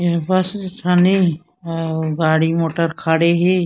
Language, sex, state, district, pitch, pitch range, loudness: Chhattisgarhi, female, Chhattisgarh, Korba, 170 Hz, 165-180 Hz, -17 LUFS